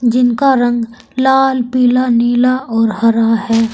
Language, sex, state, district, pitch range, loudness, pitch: Hindi, female, Uttar Pradesh, Saharanpur, 230-255 Hz, -13 LUFS, 240 Hz